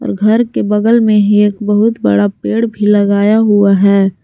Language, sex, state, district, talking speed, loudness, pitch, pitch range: Hindi, female, Jharkhand, Garhwa, 200 wpm, -11 LUFS, 210 Hz, 200-220 Hz